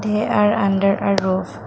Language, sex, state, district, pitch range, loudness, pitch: English, female, Assam, Kamrup Metropolitan, 195-210 Hz, -18 LUFS, 200 Hz